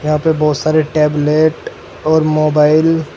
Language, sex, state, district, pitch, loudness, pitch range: Hindi, male, Uttar Pradesh, Saharanpur, 155 Hz, -13 LUFS, 150-155 Hz